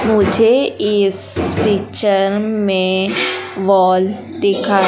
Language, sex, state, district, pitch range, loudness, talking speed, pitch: Hindi, female, Madhya Pradesh, Dhar, 190-210 Hz, -15 LUFS, 75 wpm, 200 Hz